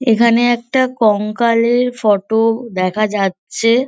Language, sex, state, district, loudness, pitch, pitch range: Bengali, female, West Bengal, Kolkata, -15 LUFS, 230 Hz, 215-240 Hz